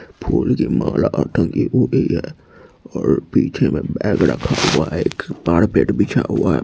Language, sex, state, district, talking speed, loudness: Hindi, male, Bihar, Purnia, 165 wpm, -18 LUFS